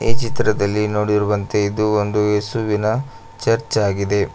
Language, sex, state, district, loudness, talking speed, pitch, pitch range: Kannada, male, Karnataka, Koppal, -19 LUFS, 110 wpm, 105 Hz, 105-115 Hz